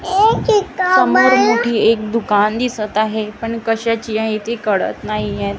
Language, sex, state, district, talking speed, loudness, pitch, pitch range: Marathi, female, Maharashtra, Gondia, 130 wpm, -16 LUFS, 220 Hz, 210-235 Hz